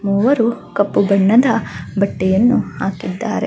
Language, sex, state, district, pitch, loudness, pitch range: Kannada, female, Karnataka, Dakshina Kannada, 205 Hz, -16 LUFS, 200-235 Hz